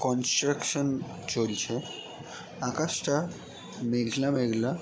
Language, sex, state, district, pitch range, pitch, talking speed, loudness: Bengali, male, West Bengal, Jalpaiguri, 120-140 Hz, 130 Hz, 60 wpm, -29 LUFS